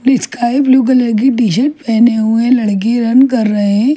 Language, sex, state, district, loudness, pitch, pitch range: Hindi, female, Delhi, New Delhi, -11 LUFS, 240 Hz, 225-260 Hz